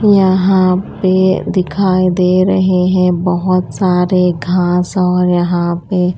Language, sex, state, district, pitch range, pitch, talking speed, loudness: Hindi, female, Odisha, Malkangiri, 180-185 Hz, 185 Hz, 115 wpm, -13 LUFS